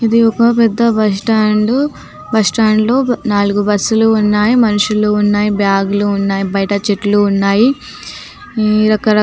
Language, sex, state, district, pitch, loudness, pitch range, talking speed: Telugu, female, Telangana, Nalgonda, 215 Hz, -13 LUFS, 205-225 Hz, 145 wpm